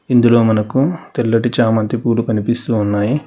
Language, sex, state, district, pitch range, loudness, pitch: Telugu, male, Telangana, Hyderabad, 110-120 Hz, -15 LUFS, 115 Hz